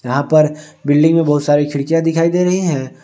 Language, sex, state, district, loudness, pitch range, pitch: Hindi, male, Jharkhand, Ranchi, -14 LUFS, 145-165 Hz, 155 Hz